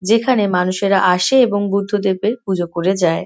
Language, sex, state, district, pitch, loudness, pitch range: Bengali, female, West Bengal, North 24 Parganas, 195 Hz, -16 LUFS, 180-210 Hz